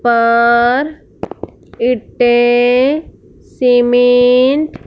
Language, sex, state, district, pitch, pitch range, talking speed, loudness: Hindi, female, Punjab, Fazilka, 245 Hz, 240-255 Hz, 50 wpm, -12 LUFS